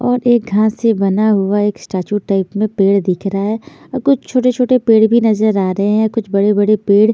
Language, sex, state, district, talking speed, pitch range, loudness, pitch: Hindi, female, Chandigarh, Chandigarh, 235 wpm, 200-230 Hz, -14 LUFS, 215 Hz